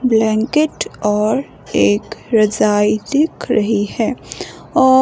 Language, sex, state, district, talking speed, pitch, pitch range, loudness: Hindi, female, Himachal Pradesh, Shimla, 95 wpm, 220 Hz, 210-260 Hz, -16 LUFS